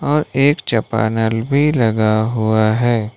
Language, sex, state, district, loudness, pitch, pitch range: Hindi, male, Jharkhand, Ranchi, -16 LUFS, 115 Hz, 110-140 Hz